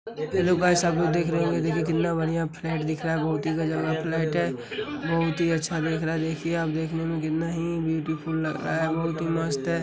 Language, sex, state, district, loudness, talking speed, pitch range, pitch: Hindi, male, Uttar Pradesh, Hamirpur, -26 LUFS, 230 wpm, 160-165 Hz, 160 Hz